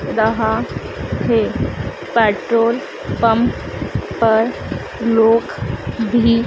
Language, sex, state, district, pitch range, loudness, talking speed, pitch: Hindi, female, Madhya Pradesh, Dhar, 225-230 Hz, -18 LUFS, 65 wpm, 230 Hz